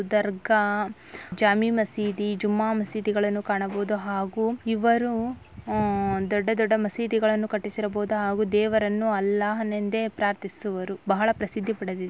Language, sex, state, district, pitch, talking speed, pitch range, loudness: Kannada, female, Karnataka, Raichur, 210 Hz, 105 wpm, 205-220 Hz, -25 LUFS